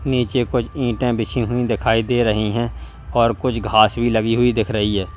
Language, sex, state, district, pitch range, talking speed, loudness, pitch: Hindi, male, Uttar Pradesh, Lalitpur, 110-120 Hz, 210 wpm, -19 LUFS, 115 Hz